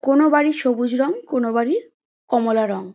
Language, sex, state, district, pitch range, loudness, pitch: Bengali, female, West Bengal, Jalpaiguri, 235-300 Hz, -19 LUFS, 255 Hz